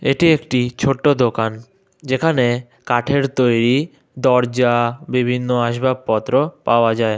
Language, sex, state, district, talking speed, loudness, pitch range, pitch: Bengali, male, West Bengal, Malda, 100 wpm, -17 LUFS, 120-135 Hz, 125 Hz